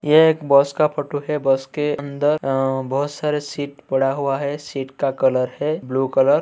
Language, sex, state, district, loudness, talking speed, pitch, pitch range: Hindi, male, Uttar Pradesh, Etah, -20 LUFS, 215 wpm, 145 Hz, 135-150 Hz